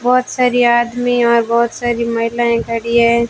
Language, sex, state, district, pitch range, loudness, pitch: Hindi, female, Rajasthan, Bikaner, 235-245 Hz, -14 LUFS, 235 Hz